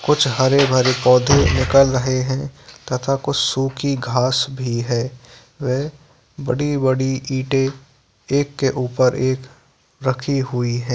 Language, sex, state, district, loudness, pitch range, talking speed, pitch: Hindi, male, Bihar, Begusarai, -19 LUFS, 125-140 Hz, 120 wpm, 130 Hz